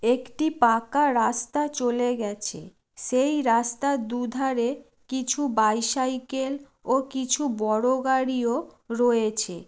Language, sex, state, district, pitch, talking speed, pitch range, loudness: Bengali, female, West Bengal, Jalpaiguri, 250 Hz, 95 wpm, 230-265 Hz, -25 LUFS